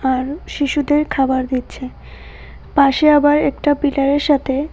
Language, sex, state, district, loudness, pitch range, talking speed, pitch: Bengali, female, Tripura, West Tripura, -16 LUFS, 270-290 Hz, 115 wpm, 285 Hz